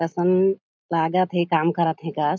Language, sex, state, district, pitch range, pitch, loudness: Chhattisgarhi, female, Chhattisgarh, Jashpur, 160-180 Hz, 170 Hz, -22 LUFS